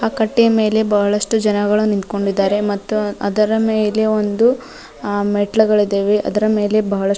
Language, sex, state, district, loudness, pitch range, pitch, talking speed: Kannada, female, Karnataka, Dharwad, -16 LUFS, 205-215 Hz, 210 Hz, 150 wpm